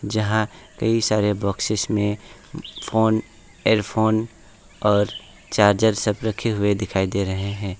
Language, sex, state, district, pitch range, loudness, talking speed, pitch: Hindi, male, West Bengal, Alipurduar, 100-110 Hz, -21 LUFS, 125 wpm, 105 Hz